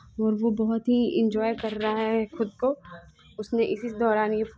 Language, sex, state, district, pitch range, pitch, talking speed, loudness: Hindi, female, Bihar, Muzaffarpur, 220-230 Hz, 220 Hz, 195 wpm, -26 LUFS